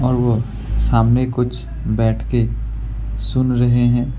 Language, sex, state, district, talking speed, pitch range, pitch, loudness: Hindi, male, West Bengal, Alipurduar, 115 wpm, 110-125 Hz, 120 Hz, -18 LUFS